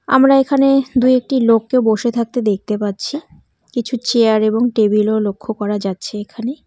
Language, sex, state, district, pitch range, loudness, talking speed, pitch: Bengali, female, West Bengal, Cooch Behar, 210-255 Hz, -16 LUFS, 160 wpm, 235 Hz